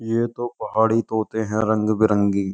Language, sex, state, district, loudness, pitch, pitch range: Hindi, male, Uttar Pradesh, Jyotiba Phule Nagar, -21 LUFS, 110 Hz, 105-115 Hz